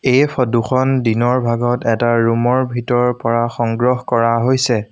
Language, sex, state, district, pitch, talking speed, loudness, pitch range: Assamese, male, Assam, Sonitpur, 120 Hz, 135 wpm, -16 LUFS, 115-125 Hz